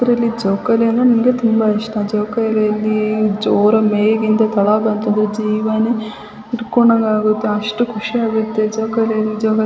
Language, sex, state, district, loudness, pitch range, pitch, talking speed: Kannada, female, Karnataka, Chamarajanagar, -16 LUFS, 215-225 Hz, 220 Hz, 120 wpm